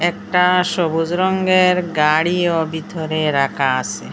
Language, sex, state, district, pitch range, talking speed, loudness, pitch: Bengali, female, Assam, Hailakandi, 150-180 Hz, 100 wpm, -17 LUFS, 165 Hz